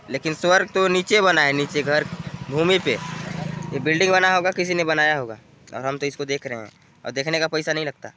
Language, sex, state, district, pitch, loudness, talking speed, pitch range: Hindi, male, Chhattisgarh, Sarguja, 160 Hz, -21 LUFS, 225 wpm, 140-180 Hz